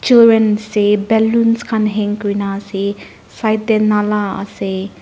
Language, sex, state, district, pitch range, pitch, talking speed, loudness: Nagamese, female, Nagaland, Dimapur, 200-220 Hz, 210 Hz, 130 wpm, -15 LUFS